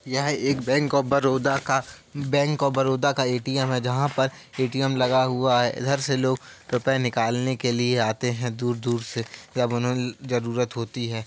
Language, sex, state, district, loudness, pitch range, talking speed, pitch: Hindi, male, Uttar Pradesh, Jalaun, -24 LUFS, 120-135 Hz, 180 wpm, 130 Hz